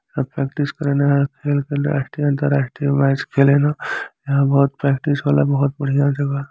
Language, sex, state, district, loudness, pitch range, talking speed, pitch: Bhojpuri, male, Uttar Pradesh, Gorakhpur, -19 LUFS, 140-145 Hz, 145 wpm, 140 Hz